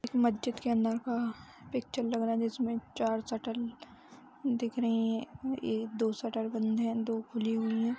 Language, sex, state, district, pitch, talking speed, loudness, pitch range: Hindi, female, Bihar, Samastipur, 230 Hz, 180 wpm, -33 LUFS, 225-240 Hz